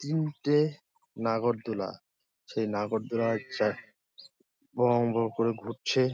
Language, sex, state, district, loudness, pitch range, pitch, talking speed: Bengali, male, West Bengal, Dakshin Dinajpur, -30 LUFS, 115-140 Hz, 115 Hz, 90 wpm